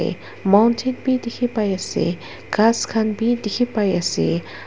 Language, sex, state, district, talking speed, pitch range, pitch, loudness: Nagamese, female, Nagaland, Dimapur, 140 wpm, 195-240 Hz, 220 Hz, -20 LUFS